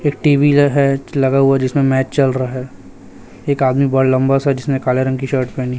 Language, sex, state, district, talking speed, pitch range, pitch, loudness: Hindi, male, Chhattisgarh, Raipur, 225 wpm, 130-140 Hz, 135 Hz, -15 LUFS